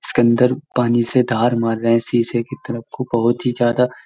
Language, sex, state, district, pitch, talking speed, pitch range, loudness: Hindi, male, Uttar Pradesh, Jyotiba Phule Nagar, 120 Hz, 220 wpm, 115-125 Hz, -18 LUFS